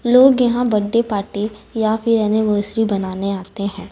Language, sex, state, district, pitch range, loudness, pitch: Hindi, female, Chhattisgarh, Raipur, 200-230 Hz, -18 LUFS, 215 Hz